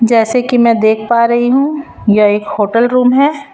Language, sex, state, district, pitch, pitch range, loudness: Hindi, female, Chhattisgarh, Raipur, 235 Hz, 220-255 Hz, -11 LUFS